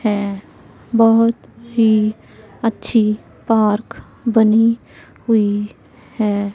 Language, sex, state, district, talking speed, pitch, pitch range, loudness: Hindi, female, Punjab, Pathankot, 75 wpm, 220 Hz, 210-230 Hz, -17 LUFS